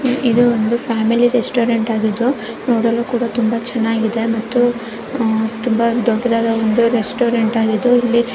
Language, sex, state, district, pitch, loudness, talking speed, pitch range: Kannada, male, Karnataka, Bijapur, 235 Hz, -16 LUFS, 120 wpm, 225-240 Hz